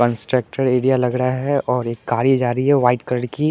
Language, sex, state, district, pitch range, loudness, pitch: Hindi, male, Chandigarh, Chandigarh, 120-130 Hz, -18 LUFS, 125 Hz